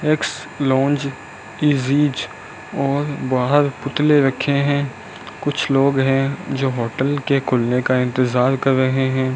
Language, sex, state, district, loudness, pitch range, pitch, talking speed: Hindi, male, Rajasthan, Bikaner, -19 LUFS, 130-145 Hz, 135 Hz, 130 wpm